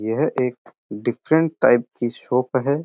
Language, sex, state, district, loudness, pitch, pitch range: Rajasthani, male, Rajasthan, Churu, -21 LUFS, 130 Hz, 120-150 Hz